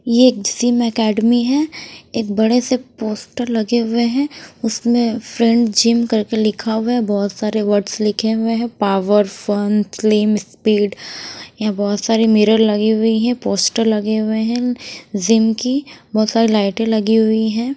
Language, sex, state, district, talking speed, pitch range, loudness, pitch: Hindi, female, Haryana, Rohtak, 160 wpm, 210-235 Hz, -16 LUFS, 225 Hz